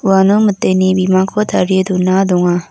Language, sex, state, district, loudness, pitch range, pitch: Garo, female, Meghalaya, North Garo Hills, -13 LUFS, 185-195 Hz, 190 Hz